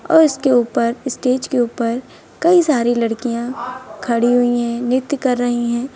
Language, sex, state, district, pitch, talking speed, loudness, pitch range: Hindi, female, Uttar Pradesh, Lucknow, 245 Hz, 160 wpm, -17 LUFS, 235-265 Hz